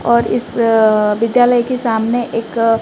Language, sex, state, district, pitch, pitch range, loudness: Hindi, female, Odisha, Malkangiri, 230 Hz, 225-240 Hz, -14 LUFS